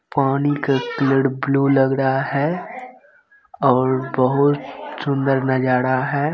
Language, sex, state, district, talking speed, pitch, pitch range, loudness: Hindi, male, Bihar, Begusarai, 115 wpm, 135 Hz, 130-145 Hz, -19 LUFS